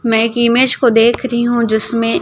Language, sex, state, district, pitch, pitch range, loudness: Hindi, female, Chhattisgarh, Raipur, 235 Hz, 230-240 Hz, -13 LUFS